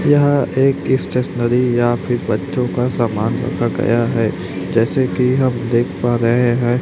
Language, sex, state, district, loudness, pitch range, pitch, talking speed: Hindi, male, Chhattisgarh, Raipur, -17 LUFS, 115-130 Hz, 120 Hz, 160 wpm